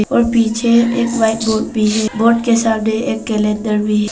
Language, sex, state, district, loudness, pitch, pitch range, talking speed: Hindi, female, Arunachal Pradesh, Papum Pare, -15 LUFS, 225 Hz, 215-235 Hz, 205 wpm